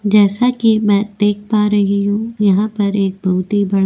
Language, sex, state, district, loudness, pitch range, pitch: Hindi, female, Goa, North and South Goa, -15 LUFS, 200-210 Hz, 205 Hz